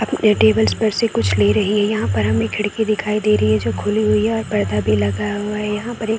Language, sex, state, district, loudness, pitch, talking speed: Hindi, female, Bihar, Saran, -18 LUFS, 210 Hz, 290 wpm